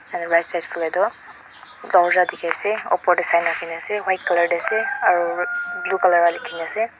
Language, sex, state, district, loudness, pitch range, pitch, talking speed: Nagamese, female, Mizoram, Aizawl, -20 LUFS, 170-215 Hz, 180 Hz, 165 wpm